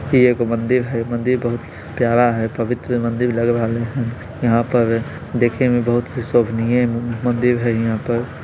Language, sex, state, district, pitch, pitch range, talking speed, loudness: Maithili, male, Bihar, Samastipur, 120 Hz, 115-125 Hz, 175 wpm, -19 LUFS